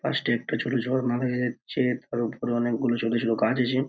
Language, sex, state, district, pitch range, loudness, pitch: Bengali, male, West Bengal, Purulia, 120-125 Hz, -26 LUFS, 120 Hz